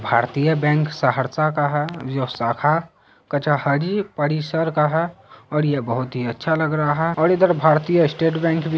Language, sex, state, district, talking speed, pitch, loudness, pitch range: Hindi, male, Bihar, Saharsa, 180 wpm, 150 Hz, -20 LUFS, 140-160 Hz